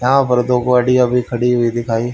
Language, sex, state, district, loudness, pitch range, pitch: Hindi, male, Haryana, Charkhi Dadri, -15 LUFS, 120-125 Hz, 125 Hz